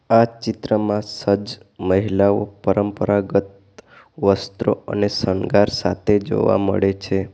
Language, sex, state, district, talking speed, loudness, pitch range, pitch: Gujarati, male, Gujarat, Valsad, 100 wpm, -19 LUFS, 95-105 Hz, 100 Hz